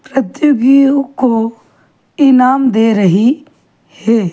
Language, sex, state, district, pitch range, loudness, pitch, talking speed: Hindi, female, Chhattisgarh, Kabirdham, 225-275 Hz, -11 LUFS, 255 Hz, 95 wpm